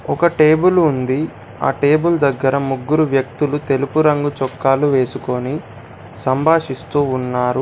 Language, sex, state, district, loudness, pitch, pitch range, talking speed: Telugu, male, Telangana, Komaram Bheem, -17 LUFS, 135 Hz, 130-150 Hz, 110 wpm